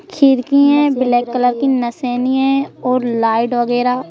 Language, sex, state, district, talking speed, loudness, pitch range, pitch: Hindi, female, Madhya Pradesh, Bhopal, 160 wpm, -15 LUFS, 245-270 Hz, 250 Hz